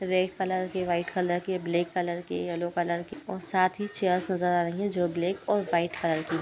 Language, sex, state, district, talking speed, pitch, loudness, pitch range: Hindi, female, Uttar Pradesh, Etah, 250 wpm, 180 Hz, -29 LUFS, 175-185 Hz